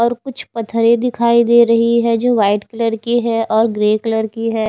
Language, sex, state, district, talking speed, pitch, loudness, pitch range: Hindi, female, Maharashtra, Gondia, 205 wpm, 230 Hz, -15 LUFS, 220-235 Hz